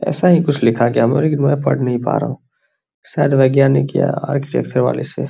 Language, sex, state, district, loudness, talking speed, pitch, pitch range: Hindi, male, Bihar, Araria, -16 LUFS, 225 wpm, 140 Hz, 130-150 Hz